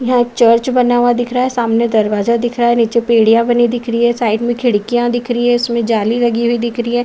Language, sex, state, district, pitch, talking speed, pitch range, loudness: Hindi, female, Bihar, Saharsa, 240 Hz, 270 wpm, 230-240 Hz, -14 LUFS